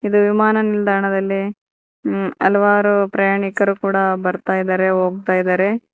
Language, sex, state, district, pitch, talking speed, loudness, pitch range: Kannada, female, Karnataka, Koppal, 195 Hz, 80 wpm, -17 LUFS, 190-205 Hz